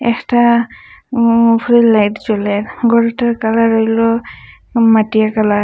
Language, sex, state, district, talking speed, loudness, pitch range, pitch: Bengali, female, Assam, Hailakandi, 115 wpm, -13 LUFS, 220-235 Hz, 230 Hz